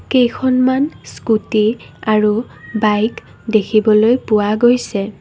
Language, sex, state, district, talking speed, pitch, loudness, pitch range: Assamese, female, Assam, Kamrup Metropolitan, 80 wpm, 220 Hz, -15 LUFS, 215-245 Hz